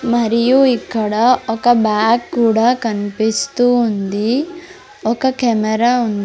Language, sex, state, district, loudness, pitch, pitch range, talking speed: Telugu, female, Andhra Pradesh, Sri Satya Sai, -15 LUFS, 235 Hz, 220-250 Hz, 105 wpm